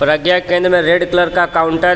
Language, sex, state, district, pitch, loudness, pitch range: Hindi, male, Jharkhand, Palamu, 175 Hz, -13 LUFS, 170-180 Hz